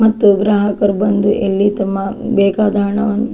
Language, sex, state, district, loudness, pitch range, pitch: Kannada, female, Karnataka, Dakshina Kannada, -14 LUFS, 200-210 Hz, 205 Hz